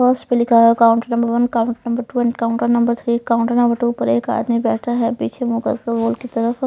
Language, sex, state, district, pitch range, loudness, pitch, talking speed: Hindi, male, Punjab, Pathankot, 230-240 Hz, -17 LUFS, 235 Hz, 280 wpm